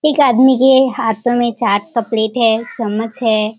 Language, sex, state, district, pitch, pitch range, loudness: Hindi, female, Bihar, Kishanganj, 235 Hz, 220-255 Hz, -14 LUFS